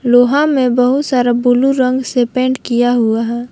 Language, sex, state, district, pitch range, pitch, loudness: Hindi, female, Jharkhand, Palamu, 245-260 Hz, 250 Hz, -13 LUFS